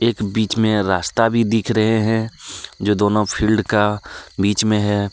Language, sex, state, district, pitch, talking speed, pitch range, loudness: Hindi, male, Jharkhand, Deoghar, 105 Hz, 175 wpm, 105-110 Hz, -18 LUFS